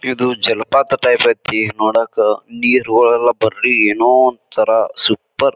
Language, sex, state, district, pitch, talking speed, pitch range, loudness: Kannada, male, Karnataka, Bijapur, 120 Hz, 130 wpm, 110-125 Hz, -14 LUFS